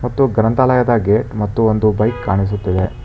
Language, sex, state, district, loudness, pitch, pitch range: Kannada, male, Karnataka, Bangalore, -16 LUFS, 110 Hz, 105-120 Hz